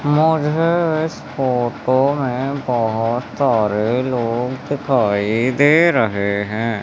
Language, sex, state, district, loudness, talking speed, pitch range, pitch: Hindi, male, Madhya Pradesh, Umaria, -18 LUFS, 95 wpm, 115-145 Hz, 130 Hz